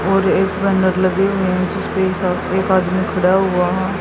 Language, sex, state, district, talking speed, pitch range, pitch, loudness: Hindi, female, Haryana, Jhajjar, 90 wpm, 185-195 Hz, 190 Hz, -17 LUFS